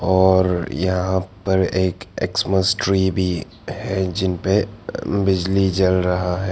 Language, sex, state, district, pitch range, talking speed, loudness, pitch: Hindi, male, Arunachal Pradesh, Papum Pare, 90-95 Hz, 130 wpm, -20 LUFS, 95 Hz